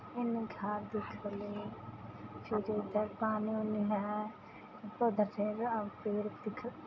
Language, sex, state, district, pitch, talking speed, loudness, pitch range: Hindi, female, Bihar, Samastipur, 210 Hz, 95 wpm, -37 LUFS, 205-215 Hz